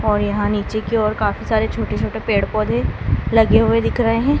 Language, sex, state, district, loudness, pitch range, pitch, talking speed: Hindi, female, Madhya Pradesh, Dhar, -18 LUFS, 205-225 Hz, 215 Hz, 205 wpm